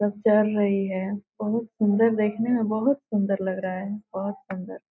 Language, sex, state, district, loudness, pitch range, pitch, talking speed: Hindi, female, Bihar, Gopalganj, -25 LUFS, 195-220 Hz, 210 Hz, 205 wpm